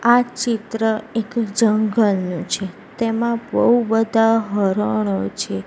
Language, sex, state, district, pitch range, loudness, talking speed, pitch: Gujarati, female, Gujarat, Gandhinagar, 195-235 Hz, -19 LUFS, 115 wpm, 225 Hz